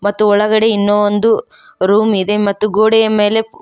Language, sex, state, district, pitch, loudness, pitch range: Kannada, female, Karnataka, Koppal, 210 Hz, -13 LUFS, 205-220 Hz